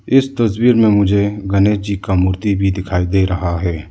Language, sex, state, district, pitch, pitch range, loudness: Hindi, male, Arunachal Pradesh, Lower Dibang Valley, 100 Hz, 90-105 Hz, -15 LUFS